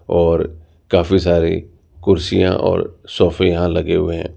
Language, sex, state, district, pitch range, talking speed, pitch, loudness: Hindi, male, Rajasthan, Jaipur, 85-90 Hz, 135 wpm, 85 Hz, -17 LUFS